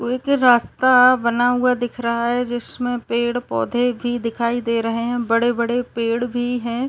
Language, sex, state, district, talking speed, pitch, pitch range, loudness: Hindi, female, Uttar Pradesh, Varanasi, 155 wpm, 240 Hz, 235-245 Hz, -19 LUFS